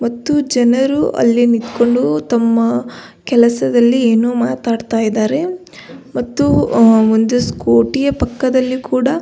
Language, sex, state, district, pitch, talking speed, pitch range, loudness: Kannada, female, Karnataka, Belgaum, 240 Hz, 105 wpm, 230-255 Hz, -14 LUFS